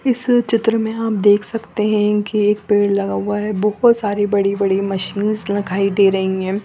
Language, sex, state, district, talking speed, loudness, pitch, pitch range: Hindi, female, Punjab, Fazilka, 200 wpm, -17 LUFS, 205 Hz, 200-215 Hz